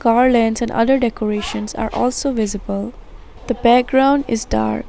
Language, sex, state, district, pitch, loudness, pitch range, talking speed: English, female, Assam, Sonitpur, 230 Hz, -17 LUFS, 210-250 Hz, 145 wpm